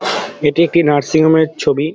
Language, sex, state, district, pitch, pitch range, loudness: Bengali, male, West Bengal, Dakshin Dinajpur, 160 Hz, 145-160 Hz, -14 LUFS